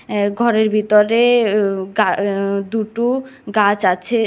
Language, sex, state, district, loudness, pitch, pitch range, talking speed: Bengali, female, Tripura, West Tripura, -16 LUFS, 215 Hz, 200-230 Hz, 125 wpm